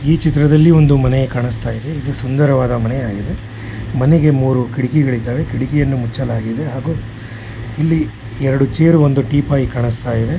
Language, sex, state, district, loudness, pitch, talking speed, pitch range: Kannada, male, Karnataka, Shimoga, -15 LUFS, 130 Hz, 155 wpm, 115-145 Hz